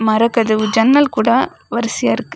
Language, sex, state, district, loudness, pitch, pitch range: Tamil, female, Tamil Nadu, Kanyakumari, -15 LUFS, 230 Hz, 220-235 Hz